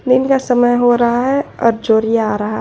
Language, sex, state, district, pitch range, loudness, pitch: Hindi, female, Jharkhand, Garhwa, 225-255 Hz, -14 LUFS, 240 Hz